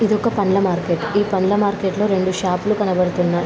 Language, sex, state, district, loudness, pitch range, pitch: Telugu, female, Andhra Pradesh, Krishna, -18 LUFS, 180-205 Hz, 195 Hz